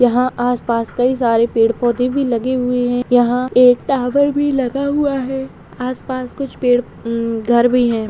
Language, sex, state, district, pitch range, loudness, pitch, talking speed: Hindi, female, Bihar, Begusarai, 240-260 Hz, -16 LUFS, 250 Hz, 165 wpm